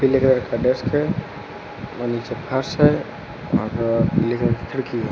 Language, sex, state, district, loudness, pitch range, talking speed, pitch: Hindi, male, Uttar Pradesh, Lucknow, -21 LUFS, 115-135 Hz, 165 wpm, 125 Hz